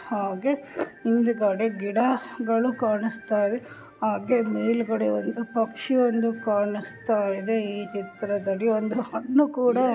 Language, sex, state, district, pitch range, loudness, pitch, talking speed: Kannada, female, Karnataka, Gulbarga, 205-245 Hz, -25 LUFS, 225 Hz, 95 wpm